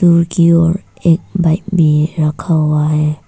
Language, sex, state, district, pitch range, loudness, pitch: Hindi, female, Arunachal Pradesh, Papum Pare, 150-170 Hz, -13 LUFS, 165 Hz